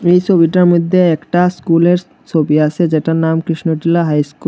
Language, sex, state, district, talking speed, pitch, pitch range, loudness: Bengali, male, Tripura, Unakoti, 175 wpm, 165 Hz, 160-175 Hz, -13 LUFS